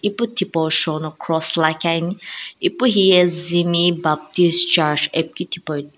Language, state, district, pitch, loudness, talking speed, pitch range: Sumi, Nagaland, Dimapur, 170 Hz, -17 LUFS, 130 wpm, 160-180 Hz